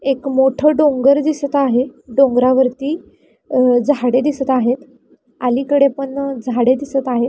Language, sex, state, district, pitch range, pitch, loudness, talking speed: Marathi, female, Maharashtra, Pune, 250-280 Hz, 270 Hz, -16 LUFS, 130 wpm